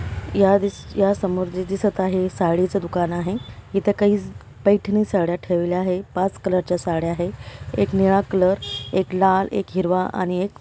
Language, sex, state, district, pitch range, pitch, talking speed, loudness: Marathi, female, Maharashtra, Dhule, 180-195 Hz, 185 Hz, 155 wpm, -21 LUFS